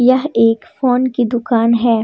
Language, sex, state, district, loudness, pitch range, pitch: Hindi, female, Jharkhand, Deoghar, -15 LUFS, 230-255 Hz, 240 Hz